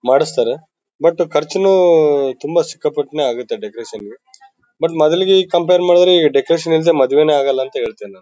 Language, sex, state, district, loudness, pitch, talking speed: Kannada, male, Karnataka, Bellary, -14 LUFS, 180 Hz, 145 wpm